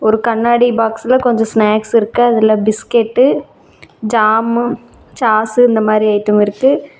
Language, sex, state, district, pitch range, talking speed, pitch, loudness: Tamil, female, Tamil Nadu, Namakkal, 215-240 Hz, 120 wpm, 225 Hz, -13 LUFS